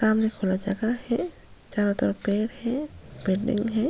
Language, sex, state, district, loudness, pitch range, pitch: Hindi, female, Chhattisgarh, Sukma, -26 LUFS, 200-235 Hz, 220 Hz